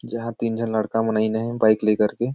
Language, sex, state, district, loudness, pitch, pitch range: Sadri, male, Chhattisgarh, Jashpur, -22 LUFS, 110 Hz, 110-115 Hz